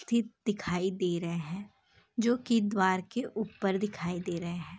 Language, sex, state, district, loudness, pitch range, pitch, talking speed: Hindi, female, Uttar Pradesh, Jalaun, -32 LUFS, 175-220 Hz, 195 Hz, 165 wpm